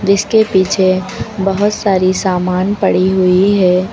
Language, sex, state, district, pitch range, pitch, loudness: Hindi, female, Uttar Pradesh, Lucknow, 185-200 Hz, 190 Hz, -13 LUFS